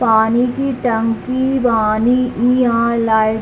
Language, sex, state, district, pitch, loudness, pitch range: Hindi, female, Bihar, East Champaran, 235 Hz, -15 LUFS, 225-250 Hz